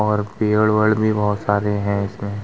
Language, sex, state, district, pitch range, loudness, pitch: Hindi, male, Uttar Pradesh, Muzaffarnagar, 100-105 Hz, -19 LUFS, 105 Hz